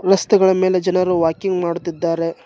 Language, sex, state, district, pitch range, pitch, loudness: Kannada, male, Karnataka, Bangalore, 170-185 Hz, 185 Hz, -17 LUFS